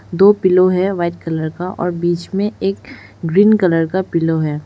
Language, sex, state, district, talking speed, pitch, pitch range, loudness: Hindi, female, Arunachal Pradesh, Lower Dibang Valley, 195 wpm, 180 Hz, 165-190 Hz, -16 LUFS